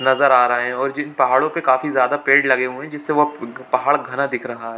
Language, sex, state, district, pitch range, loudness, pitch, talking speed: Hindi, male, Jharkhand, Sahebganj, 125-145 Hz, -18 LUFS, 130 Hz, 250 wpm